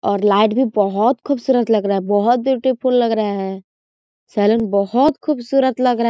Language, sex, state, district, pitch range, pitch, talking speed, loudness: Hindi, female, Chhattisgarh, Korba, 205-260 Hz, 230 Hz, 185 wpm, -17 LUFS